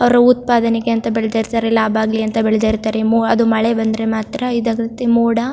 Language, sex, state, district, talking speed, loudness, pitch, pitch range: Kannada, female, Karnataka, Chamarajanagar, 175 wpm, -16 LUFS, 230 Hz, 220-235 Hz